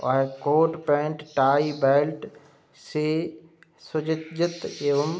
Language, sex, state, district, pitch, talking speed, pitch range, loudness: Hindi, male, Uttar Pradesh, Budaun, 150 Hz, 115 wpm, 145-160 Hz, -24 LUFS